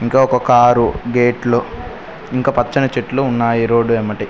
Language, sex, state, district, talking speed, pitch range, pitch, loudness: Telugu, male, Telangana, Mahabubabad, 125 wpm, 115-125 Hz, 120 Hz, -15 LUFS